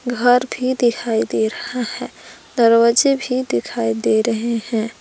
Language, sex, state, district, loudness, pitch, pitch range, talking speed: Hindi, female, Jharkhand, Palamu, -18 LUFS, 235 Hz, 225-250 Hz, 145 wpm